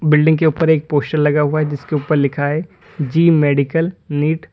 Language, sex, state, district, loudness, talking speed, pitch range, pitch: Hindi, male, Uttar Pradesh, Lalitpur, -16 LUFS, 210 wpm, 145-160 Hz, 150 Hz